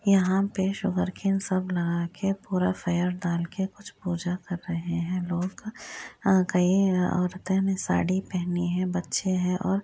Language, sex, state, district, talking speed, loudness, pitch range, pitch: Hindi, female, Bihar, Muzaffarpur, 150 wpm, -27 LUFS, 175-195 Hz, 185 Hz